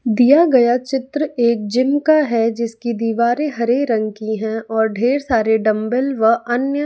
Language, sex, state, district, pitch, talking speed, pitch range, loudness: Hindi, female, Bihar, West Champaran, 235 Hz, 165 wpm, 225-265 Hz, -17 LUFS